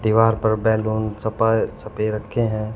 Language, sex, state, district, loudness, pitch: Hindi, male, Haryana, Charkhi Dadri, -21 LUFS, 110 Hz